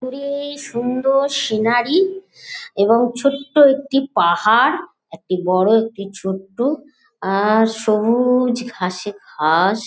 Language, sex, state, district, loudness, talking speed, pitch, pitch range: Bengali, female, West Bengal, Dakshin Dinajpur, -17 LUFS, 90 wpm, 240 Hz, 205-275 Hz